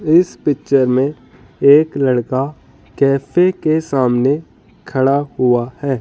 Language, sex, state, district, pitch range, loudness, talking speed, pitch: Hindi, male, Rajasthan, Jaipur, 130-145 Hz, -15 LUFS, 110 wpm, 135 Hz